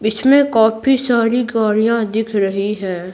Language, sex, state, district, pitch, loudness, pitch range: Hindi, female, Bihar, Patna, 220 Hz, -15 LUFS, 210-240 Hz